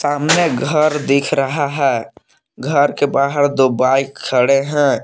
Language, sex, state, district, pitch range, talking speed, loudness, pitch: Hindi, male, Jharkhand, Palamu, 135-145 Hz, 145 wpm, -15 LUFS, 140 Hz